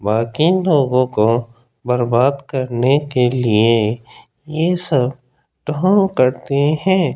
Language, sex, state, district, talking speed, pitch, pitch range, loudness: Hindi, male, Rajasthan, Jaipur, 100 wpm, 130 Hz, 120-150 Hz, -16 LUFS